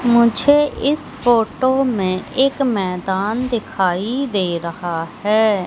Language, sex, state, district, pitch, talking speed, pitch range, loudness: Hindi, female, Madhya Pradesh, Katni, 220 Hz, 105 wpm, 185-255 Hz, -18 LUFS